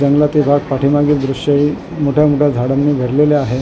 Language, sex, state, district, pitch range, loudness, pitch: Marathi, male, Maharashtra, Mumbai Suburban, 135-150 Hz, -14 LUFS, 145 Hz